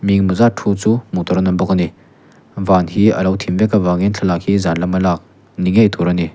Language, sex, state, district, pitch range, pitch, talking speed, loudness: Mizo, male, Mizoram, Aizawl, 90-100 Hz, 95 Hz, 310 wpm, -15 LUFS